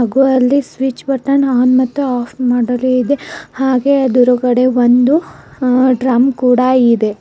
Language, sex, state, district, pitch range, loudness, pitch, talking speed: Kannada, female, Karnataka, Bidar, 245-265 Hz, -13 LUFS, 255 Hz, 125 wpm